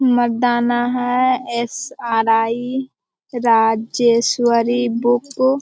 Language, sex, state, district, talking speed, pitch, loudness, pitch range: Hindi, female, Bihar, Jamui, 65 wpm, 240 Hz, -17 LUFS, 235-250 Hz